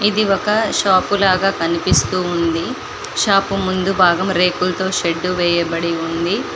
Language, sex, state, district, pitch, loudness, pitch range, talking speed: Telugu, female, Telangana, Mahabubabad, 185 Hz, -17 LUFS, 170-195 Hz, 120 wpm